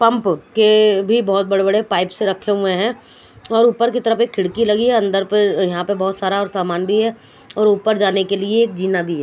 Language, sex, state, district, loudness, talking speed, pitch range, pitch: Hindi, female, Punjab, Fazilka, -17 LUFS, 225 wpm, 190-225 Hz, 205 Hz